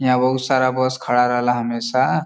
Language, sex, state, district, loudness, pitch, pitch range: Bhojpuri, male, Uttar Pradesh, Varanasi, -19 LUFS, 130 Hz, 125-130 Hz